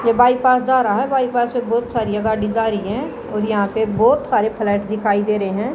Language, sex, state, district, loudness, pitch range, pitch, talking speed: Hindi, female, Haryana, Jhajjar, -18 LUFS, 210-245 Hz, 220 Hz, 240 wpm